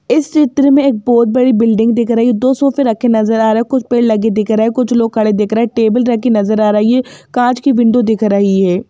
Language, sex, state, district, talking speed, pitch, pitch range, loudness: Hindi, female, Madhya Pradesh, Bhopal, 275 wpm, 235 Hz, 220-250 Hz, -12 LUFS